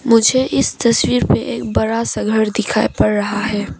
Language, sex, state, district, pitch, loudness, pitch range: Hindi, female, Arunachal Pradesh, Papum Pare, 220 Hz, -16 LUFS, 210-230 Hz